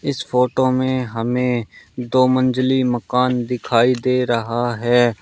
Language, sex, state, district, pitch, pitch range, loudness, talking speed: Hindi, male, Uttar Pradesh, Shamli, 125 Hz, 120-130 Hz, -18 LUFS, 125 wpm